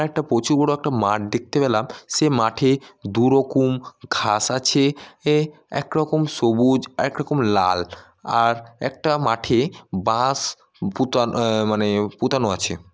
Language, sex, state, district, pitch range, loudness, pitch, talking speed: Bengali, male, West Bengal, North 24 Parganas, 110-145 Hz, -21 LUFS, 130 Hz, 120 wpm